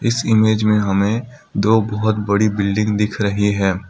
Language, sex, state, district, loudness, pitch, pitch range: Hindi, male, Assam, Kamrup Metropolitan, -17 LUFS, 105 Hz, 100-110 Hz